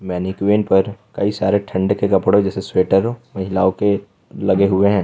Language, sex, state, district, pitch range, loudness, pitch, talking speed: Hindi, male, Jharkhand, Ranchi, 95-100 Hz, -18 LUFS, 100 Hz, 155 wpm